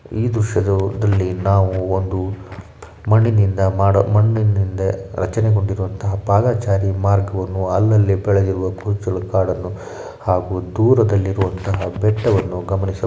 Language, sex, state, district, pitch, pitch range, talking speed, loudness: Kannada, male, Karnataka, Shimoga, 95 Hz, 95-105 Hz, 85 wpm, -18 LUFS